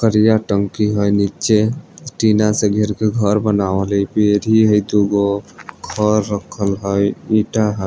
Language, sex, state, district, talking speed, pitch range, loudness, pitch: Maithili, male, Bihar, Vaishali, 145 wpm, 100-110 Hz, -16 LUFS, 105 Hz